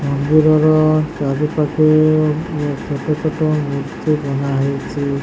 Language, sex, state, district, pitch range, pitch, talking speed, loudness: Odia, male, Odisha, Sambalpur, 140-155 Hz, 150 Hz, 115 wpm, -16 LUFS